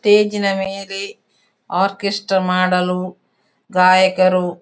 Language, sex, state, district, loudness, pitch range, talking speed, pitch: Kannada, female, Karnataka, Dakshina Kannada, -17 LUFS, 185-200 Hz, 65 wpm, 195 Hz